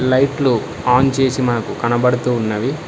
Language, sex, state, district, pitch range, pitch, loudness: Telugu, male, Telangana, Hyderabad, 120-135 Hz, 125 Hz, -17 LUFS